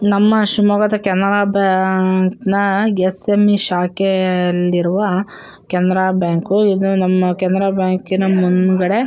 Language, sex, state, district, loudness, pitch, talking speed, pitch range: Kannada, female, Karnataka, Shimoga, -15 LUFS, 190 Hz, 100 wpm, 185-200 Hz